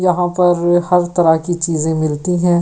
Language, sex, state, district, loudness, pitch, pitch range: Hindi, female, Delhi, New Delhi, -15 LUFS, 175 Hz, 165-180 Hz